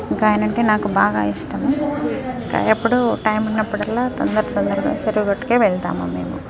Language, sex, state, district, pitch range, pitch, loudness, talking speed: Telugu, female, Telangana, Nalgonda, 210-240 Hz, 215 Hz, -19 LUFS, 130 wpm